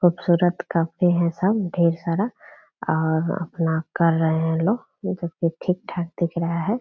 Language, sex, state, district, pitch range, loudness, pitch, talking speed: Hindi, female, Bihar, Purnia, 165-185 Hz, -23 LUFS, 170 Hz, 150 wpm